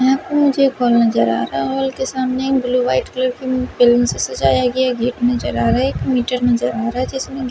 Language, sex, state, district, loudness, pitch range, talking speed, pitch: Hindi, female, Bihar, West Champaran, -17 LUFS, 240-265 Hz, 245 wpm, 255 Hz